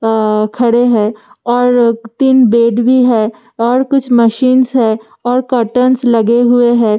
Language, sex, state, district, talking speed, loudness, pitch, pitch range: Hindi, female, Delhi, New Delhi, 165 wpm, -11 LUFS, 240 Hz, 230-250 Hz